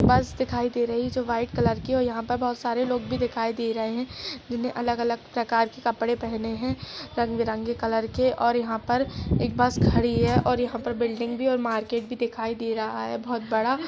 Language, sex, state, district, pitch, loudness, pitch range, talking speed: Hindi, female, Uttar Pradesh, Jalaun, 235 Hz, -26 LUFS, 225-245 Hz, 235 wpm